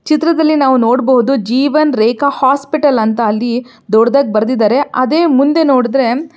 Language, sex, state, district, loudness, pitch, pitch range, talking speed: Kannada, female, Karnataka, Belgaum, -12 LUFS, 265 Hz, 240-285 Hz, 130 wpm